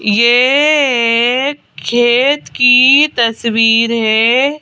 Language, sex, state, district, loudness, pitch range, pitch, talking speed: Hindi, female, Madhya Pradesh, Bhopal, -10 LUFS, 230-275 Hz, 245 Hz, 80 wpm